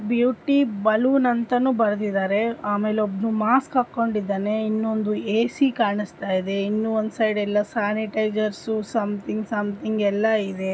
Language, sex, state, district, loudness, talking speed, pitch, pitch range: Kannada, female, Karnataka, Dharwad, -23 LUFS, 80 wpm, 215 Hz, 205-230 Hz